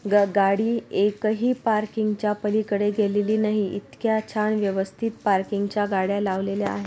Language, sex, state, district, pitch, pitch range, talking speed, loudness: Marathi, female, Maharashtra, Pune, 205 Hz, 200-215 Hz, 120 wpm, -24 LUFS